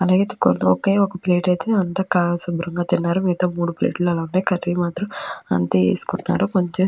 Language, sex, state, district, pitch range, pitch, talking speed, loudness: Telugu, female, Andhra Pradesh, Chittoor, 170-185 Hz, 175 Hz, 130 wpm, -20 LUFS